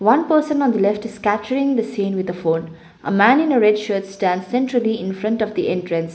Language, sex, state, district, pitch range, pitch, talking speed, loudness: English, female, Sikkim, Gangtok, 185-240 Hz, 210 Hz, 235 wpm, -19 LUFS